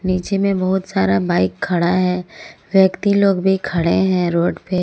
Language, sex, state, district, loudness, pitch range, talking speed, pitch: Hindi, female, Jharkhand, Ranchi, -17 LUFS, 170-190 Hz, 175 wpm, 185 Hz